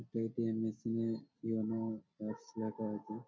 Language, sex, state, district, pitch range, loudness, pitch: Bengali, male, West Bengal, Malda, 110-115 Hz, -39 LUFS, 110 Hz